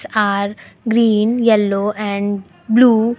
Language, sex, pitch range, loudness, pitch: English, female, 200-230 Hz, -16 LUFS, 215 Hz